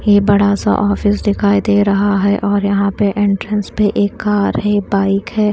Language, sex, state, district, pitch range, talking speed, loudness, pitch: Hindi, female, Haryana, Charkhi Dadri, 200-205 Hz, 195 wpm, -14 LUFS, 205 Hz